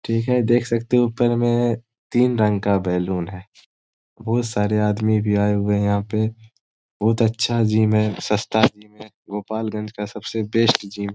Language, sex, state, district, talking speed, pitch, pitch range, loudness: Hindi, male, Bihar, Gopalganj, 175 wpm, 110 Hz, 105-115 Hz, -21 LUFS